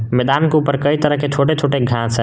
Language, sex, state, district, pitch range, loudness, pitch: Hindi, male, Jharkhand, Garhwa, 125-145 Hz, -16 LUFS, 140 Hz